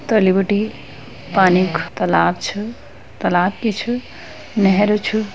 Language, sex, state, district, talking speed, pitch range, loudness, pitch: Hindi, female, Uttarakhand, Uttarkashi, 125 wpm, 180-215 Hz, -18 LUFS, 200 Hz